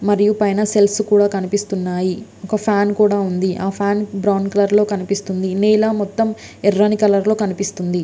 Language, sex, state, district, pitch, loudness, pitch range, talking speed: Telugu, female, Andhra Pradesh, Visakhapatnam, 205 Hz, -17 LUFS, 195-210 Hz, 155 wpm